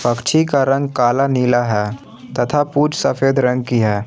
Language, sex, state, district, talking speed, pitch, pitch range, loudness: Hindi, male, Jharkhand, Palamu, 175 wpm, 125 Hz, 120-140 Hz, -16 LUFS